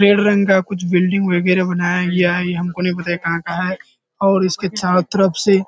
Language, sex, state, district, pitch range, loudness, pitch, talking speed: Hindi, male, Bihar, Kishanganj, 175-195 Hz, -17 LUFS, 180 Hz, 245 wpm